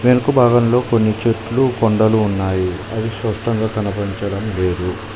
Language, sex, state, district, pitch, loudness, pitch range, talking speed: Telugu, male, Telangana, Mahabubabad, 110 Hz, -17 LUFS, 100-115 Hz, 115 wpm